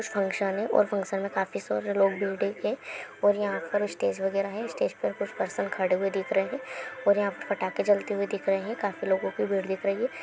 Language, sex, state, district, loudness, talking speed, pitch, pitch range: Maithili, female, Bihar, Samastipur, -28 LUFS, 240 wpm, 200 Hz, 195-205 Hz